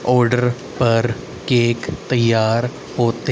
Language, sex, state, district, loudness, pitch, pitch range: Hindi, male, Haryana, Rohtak, -18 LUFS, 120 Hz, 115-125 Hz